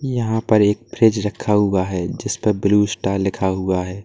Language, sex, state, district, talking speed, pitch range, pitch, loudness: Hindi, male, Uttar Pradesh, Lalitpur, 205 wpm, 95-110 Hz, 105 Hz, -19 LUFS